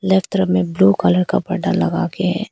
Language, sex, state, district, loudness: Hindi, female, Arunachal Pradesh, Papum Pare, -17 LUFS